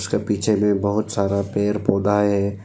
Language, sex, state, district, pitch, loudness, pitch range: Hindi, male, Arunachal Pradesh, Lower Dibang Valley, 100 Hz, -20 LUFS, 100-105 Hz